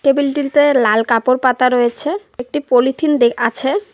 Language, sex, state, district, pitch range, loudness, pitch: Bengali, female, West Bengal, Cooch Behar, 245-290 Hz, -15 LUFS, 260 Hz